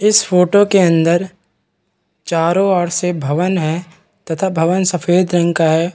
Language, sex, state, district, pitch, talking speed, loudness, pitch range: Hindi, male, Chhattisgarh, Raigarh, 175 Hz, 150 wpm, -15 LUFS, 165-185 Hz